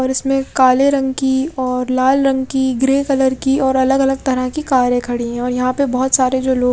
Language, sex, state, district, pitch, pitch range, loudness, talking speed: Hindi, female, Chhattisgarh, Raipur, 265 Hz, 255-270 Hz, -16 LUFS, 250 wpm